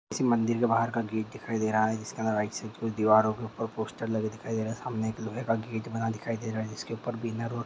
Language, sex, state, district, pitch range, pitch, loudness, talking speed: Hindi, male, Uttar Pradesh, Gorakhpur, 110-115 Hz, 110 Hz, -30 LUFS, 275 wpm